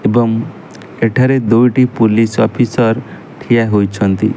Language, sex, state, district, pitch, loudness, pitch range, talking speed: Odia, male, Odisha, Malkangiri, 115 Hz, -13 LUFS, 110-120 Hz, 95 wpm